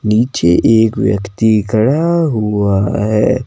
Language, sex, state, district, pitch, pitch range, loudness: Hindi, male, Himachal Pradesh, Shimla, 110 Hz, 100-115 Hz, -13 LUFS